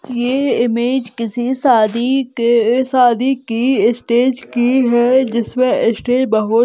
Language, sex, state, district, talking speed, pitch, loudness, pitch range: Hindi, female, West Bengal, Dakshin Dinajpur, 115 wpm, 245 Hz, -15 LUFS, 235-255 Hz